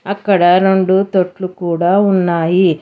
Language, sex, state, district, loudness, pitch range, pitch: Telugu, female, Telangana, Hyderabad, -13 LUFS, 175-195 Hz, 185 Hz